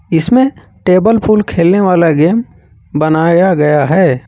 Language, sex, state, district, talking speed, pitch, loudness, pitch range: Hindi, male, Jharkhand, Ranchi, 125 wpm, 180 Hz, -11 LUFS, 160-205 Hz